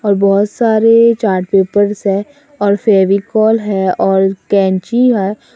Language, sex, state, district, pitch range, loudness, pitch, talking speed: Hindi, female, Assam, Sonitpur, 195-220 Hz, -12 LUFS, 205 Hz, 130 wpm